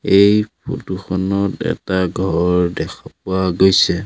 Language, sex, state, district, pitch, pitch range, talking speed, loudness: Assamese, male, Assam, Sonitpur, 95 Hz, 95-100 Hz, 120 wpm, -17 LUFS